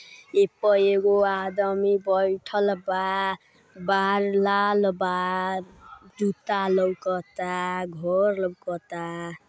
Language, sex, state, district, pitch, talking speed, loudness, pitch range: Bhojpuri, female, Uttar Pradesh, Gorakhpur, 190 Hz, 75 wpm, -24 LUFS, 185-200 Hz